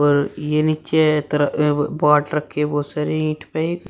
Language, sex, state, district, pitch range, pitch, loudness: Hindi, male, Uttar Pradesh, Shamli, 150-155 Hz, 150 Hz, -19 LUFS